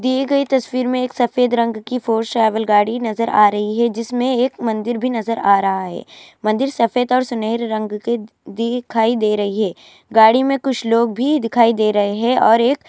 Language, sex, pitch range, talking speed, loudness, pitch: Urdu, female, 220-250 Hz, 185 wpm, -17 LUFS, 230 Hz